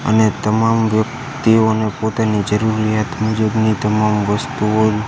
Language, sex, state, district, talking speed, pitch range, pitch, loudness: Gujarati, male, Gujarat, Gandhinagar, 95 wpm, 105-110 Hz, 110 Hz, -16 LUFS